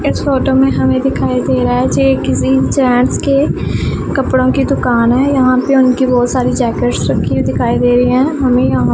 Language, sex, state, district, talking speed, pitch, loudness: Hindi, female, Punjab, Pathankot, 200 wpm, 245 Hz, -12 LUFS